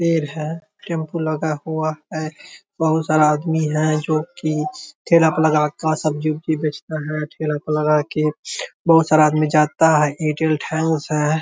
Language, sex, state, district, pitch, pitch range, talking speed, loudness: Hindi, male, Bihar, Darbhanga, 155 Hz, 150-160 Hz, 160 wpm, -19 LUFS